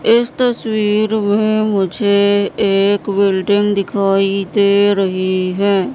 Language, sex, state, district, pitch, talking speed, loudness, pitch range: Hindi, female, Madhya Pradesh, Katni, 200 Hz, 100 wpm, -15 LUFS, 195-210 Hz